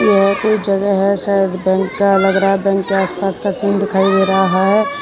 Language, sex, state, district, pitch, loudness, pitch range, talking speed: Hindi, female, Gujarat, Valsad, 195 Hz, -15 LUFS, 195-200 Hz, 240 wpm